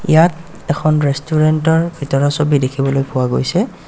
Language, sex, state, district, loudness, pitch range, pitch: Assamese, male, Assam, Kamrup Metropolitan, -15 LUFS, 135-160 Hz, 150 Hz